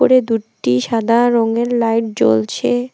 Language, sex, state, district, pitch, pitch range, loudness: Bengali, female, West Bengal, Alipurduar, 230 Hz, 225-240 Hz, -16 LUFS